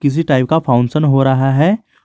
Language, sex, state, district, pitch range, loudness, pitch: Hindi, male, Jharkhand, Garhwa, 135-160 Hz, -13 LUFS, 140 Hz